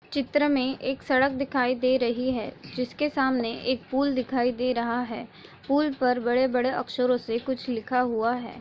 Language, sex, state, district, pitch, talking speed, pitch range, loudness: Hindi, female, Goa, North and South Goa, 255 Hz, 180 wpm, 245-265 Hz, -26 LUFS